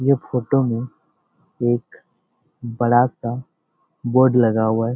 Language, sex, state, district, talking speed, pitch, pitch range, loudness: Hindi, male, Chhattisgarh, Bastar, 120 wpm, 120 Hz, 115-130 Hz, -19 LUFS